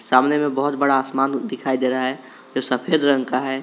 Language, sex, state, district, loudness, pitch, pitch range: Hindi, male, Jharkhand, Garhwa, -20 LUFS, 130 Hz, 130-140 Hz